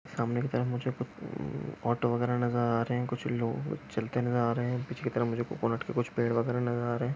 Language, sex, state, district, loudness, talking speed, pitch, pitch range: Hindi, male, Maharashtra, Nagpur, -31 LUFS, 225 wpm, 120 Hz, 115-125 Hz